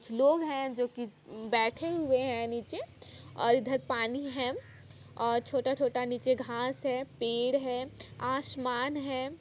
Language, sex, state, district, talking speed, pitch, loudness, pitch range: Hindi, female, Chhattisgarh, Kabirdham, 135 wpm, 255 Hz, -32 LUFS, 235-265 Hz